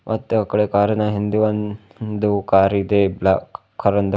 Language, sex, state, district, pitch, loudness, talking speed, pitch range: Kannada, male, Karnataka, Bidar, 105 Hz, -19 LUFS, 145 wpm, 100-105 Hz